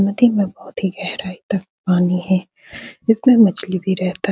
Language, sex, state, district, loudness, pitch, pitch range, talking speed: Hindi, female, Bihar, Supaul, -18 LUFS, 190 Hz, 185-200 Hz, 180 wpm